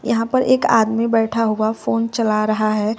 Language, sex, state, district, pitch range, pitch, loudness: Hindi, female, Uttar Pradesh, Shamli, 215-230 Hz, 225 Hz, -18 LUFS